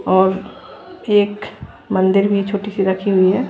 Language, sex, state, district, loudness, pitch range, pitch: Hindi, female, Odisha, Khordha, -17 LUFS, 190-205 Hz, 200 Hz